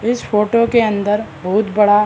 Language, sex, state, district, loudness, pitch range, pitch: Hindi, male, Bihar, Madhepura, -16 LUFS, 205-230 Hz, 210 Hz